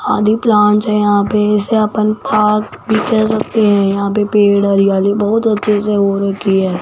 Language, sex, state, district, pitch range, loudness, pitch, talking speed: Hindi, female, Rajasthan, Jaipur, 200-215 Hz, -13 LUFS, 210 Hz, 195 wpm